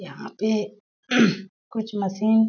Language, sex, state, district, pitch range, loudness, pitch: Hindi, female, Chhattisgarh, Balrampur, 205-220 Hz, -24 LUFS, 215 Hz